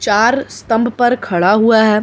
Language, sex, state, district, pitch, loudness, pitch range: Hindi, female, Bihar, Katihar, 225 Hz, -13 LUFS, 210-240 Hz